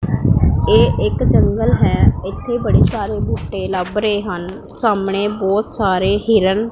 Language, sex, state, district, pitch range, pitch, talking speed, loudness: Punjabi, female, Punjab, Pathankot, 190-215 Hz, 205 Hz, 145 wpm, -16 LUFS